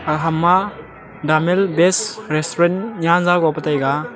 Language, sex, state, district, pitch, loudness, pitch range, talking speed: Wancho, male, Arunachal Pradesh, Longding, 170 Hz, -17 LUFS, 155-185 Hz, 130 wpm